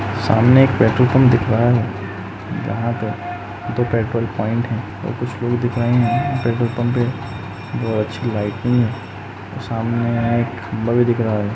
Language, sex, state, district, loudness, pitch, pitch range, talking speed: Hindi, male, Uttar Pradesh, Jalaun, -19 LUFS, 115 Hz, 110-120 Hz, 170 wpm